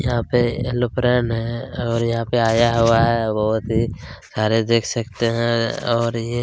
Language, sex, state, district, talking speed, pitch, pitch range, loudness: Hindi, male, Chhattisgarh, Kabirdham, 170 wpm, 115 Hz, 115-120 Hz, -20 LUFS